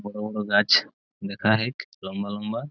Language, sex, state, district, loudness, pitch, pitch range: Bengali, male, West Bengal, Purulia, -24 LUFS, 105 Hz, 100-110 Hz